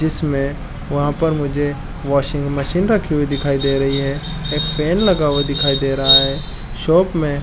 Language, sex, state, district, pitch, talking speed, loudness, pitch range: Chhattisgarhi, male, Chhattisgarh, Jashpur, 145 Hz, 180 wpm, -17 LUFS, 140-155 Hz